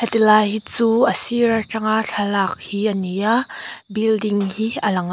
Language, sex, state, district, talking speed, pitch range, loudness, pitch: Mizo, female, Mizoram, Aizawl, 185 wpm, 205-225 Hz, -18 LUFS, 215 Hz